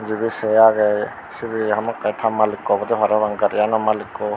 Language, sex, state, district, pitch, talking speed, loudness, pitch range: Chakma, male, Tripura, Unakoti, 110 Hz, 150 wpm, -19 LUFS, 105-110 Hz